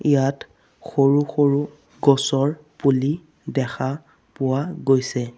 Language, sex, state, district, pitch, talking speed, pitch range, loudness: Assamese, male, Assam, Sonitpur, 140 Hz, 80 wpm, 135-150 Hz, -21 LUFS